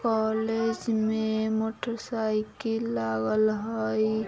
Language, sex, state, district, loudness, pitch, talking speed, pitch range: Bajjika, female, Bihar, Vaishali, -28 LUFS, 220 Hz, 85 wpm, 215-225 Hz